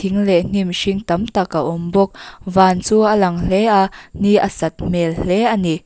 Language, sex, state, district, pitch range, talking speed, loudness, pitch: Mizo, female, Mizoram, Aizawl, 175-200 Hz, 225 wpm, -16 LUFS, 190 Hz